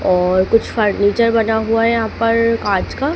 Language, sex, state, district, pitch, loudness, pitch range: Hindi, female, Madhya Pradesh, Dhar, 225 Hz, -15 LUFS, 205-230 Hz